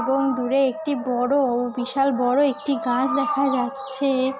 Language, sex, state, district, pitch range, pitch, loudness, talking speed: Bengali, female, West Bengal, Jalpaiguri, 250-280 Hz, 270 Hz, -22 LUFS, 150 wpm